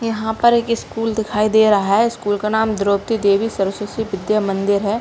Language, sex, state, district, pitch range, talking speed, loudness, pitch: Hindi, female, Uttar Pradesh, Budaun, 200-225 Hz, 205 wpm, -18 LUFS, 215 Hz